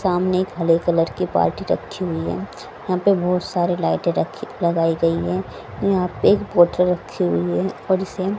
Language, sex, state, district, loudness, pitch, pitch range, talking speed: Hindi, female, Haryana, Jhajjar, -20 LUFS, 180 Hz, 165-185 Hz, 200 wpm